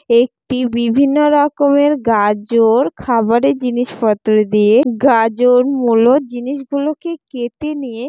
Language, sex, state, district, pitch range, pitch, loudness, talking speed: Bengali, female, West Bengal, Jalpaiguri, 230-280 Hz, 250 Hz, -14 LUFS, 90 wpm